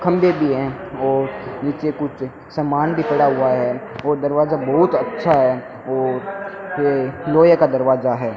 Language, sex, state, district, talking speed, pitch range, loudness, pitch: Hindi, male, Rajasthan, Bikaner, 160 wpm, 130-150 Hz, -18 LUFS, 140 Hz